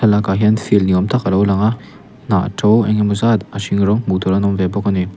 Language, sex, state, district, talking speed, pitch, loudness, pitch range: Mizo, male, Mizoram, Aizawl, 300 wpm, 100 Hz, -15 LUFS, 95-105 Hz